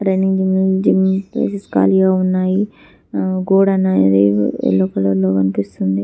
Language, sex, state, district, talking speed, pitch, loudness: Telugu, female, Telangana, Karimnagar, 110 wpm, 185 Hz, -16 LUFS